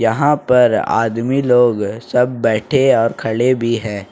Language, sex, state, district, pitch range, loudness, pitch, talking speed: Hindi, male, Jharkhand, Ranchi, 115-130 Hz, -15 LUFS, 120 Hz, 145 wpm